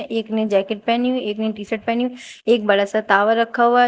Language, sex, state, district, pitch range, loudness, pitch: Hindi, female, Uttar Pradesh, Shamli, 215-240 Hz, -19 LUFS, 225 Hz